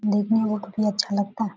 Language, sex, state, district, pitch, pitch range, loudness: Hindi, female, Bihar, Darbhanga, 210 Hz, 205-215 Hz, -24 LUFS